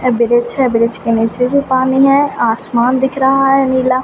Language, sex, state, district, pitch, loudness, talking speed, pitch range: Hindi, female, Jharkhand, Sahebganj, 255 Hz, -13 LUFS, 220 wpm, 235-270 Hz